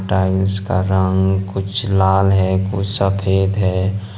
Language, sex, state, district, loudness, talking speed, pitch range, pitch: Hindi, male, Jharkhand, Ranchi, -17 LUFS, 130 wpm, 95-100 Hz, 95 Hz